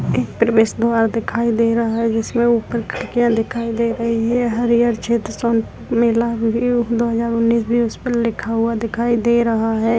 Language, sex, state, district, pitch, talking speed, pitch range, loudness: Hindi, female, Maharashtra, Pune, 230 Hz, 170 wpm, 230-235 Hz, -18 LUFS